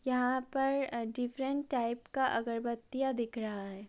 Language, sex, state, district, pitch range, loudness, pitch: Hindi, female, Uttar Pradesh, Budaun, 230-265 Hz, -35 LUFS, 245 Hz